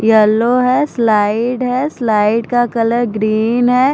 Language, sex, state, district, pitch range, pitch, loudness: Hindi, female, Punjab, Fazilka, 220-250 Hz, 235 Hz, -14 LUFS